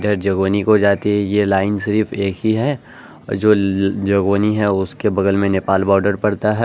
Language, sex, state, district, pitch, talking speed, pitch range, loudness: Angika, male, Bihar, Araria, 100 Hz, 200 wpm, 100-105 Hz, -17 LUFS